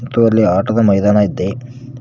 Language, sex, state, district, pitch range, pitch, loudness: Kannada, male, Karnataka, Koppal, 100-125 Hz, 110 Hz, -14 LUFS